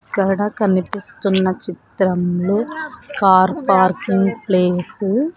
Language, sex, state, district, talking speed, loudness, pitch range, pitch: Telugu, female, Andhra Pradesh, Sri Satya Sai, 80 wpm, -17 LUFS, 185-210 Hz, 195 Hz